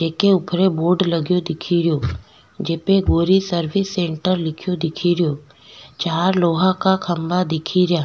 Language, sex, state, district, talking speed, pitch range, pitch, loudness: Rajasthani, female, Rajasthan, Nagaur, 120 wpm, 165-185 Hz, 175 Hz, -19 LUFS